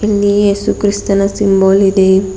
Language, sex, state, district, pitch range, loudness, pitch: Kannada, female, Karnataka, Bidar, 195-205 Hz, -12 LUFS, 200 Hz